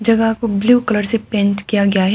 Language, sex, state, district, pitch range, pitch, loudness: Hindi, female, Arunachal Pradesh, Papum Pare, 200-230 Hz, 215 Hz, -16 LUFS